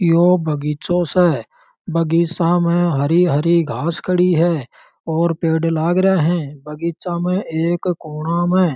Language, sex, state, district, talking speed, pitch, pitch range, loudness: Marwari, male, Rajasthan, Churu, 145 wpm, 170 Hz, 160-175 Hz, -18 LUFS